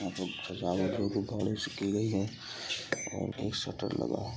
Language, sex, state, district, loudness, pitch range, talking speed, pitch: Bhojpuri, male, Uttar Pradesh, Gorakhpur, -34 LUFS, 95-105 Hz, 165 wpm, 100 Hz